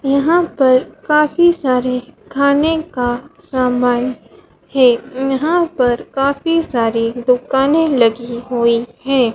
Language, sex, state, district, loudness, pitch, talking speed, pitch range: Hindi, female, Madhya Pradesh, Dhar, -15 LUFS, 260 Hz, 105 wpm, 245-295 Hz